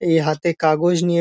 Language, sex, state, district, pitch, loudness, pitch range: Bengali, male, West Bengal, North 24 Parganas, 170 Hz, -18 LUFS, 160-170 Hz